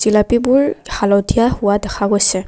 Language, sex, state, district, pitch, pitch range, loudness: Assamese, female, Assam, Kamrup Metropolitan, 205 Hz, 200-235 Hz, -15 LUFS